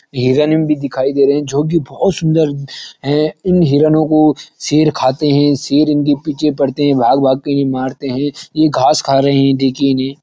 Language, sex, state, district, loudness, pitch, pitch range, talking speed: Hindi, male, Uttarakhand, Uttarkashi, -13 LUFS, 145 Hz, 135-155 Hz, 200 wpm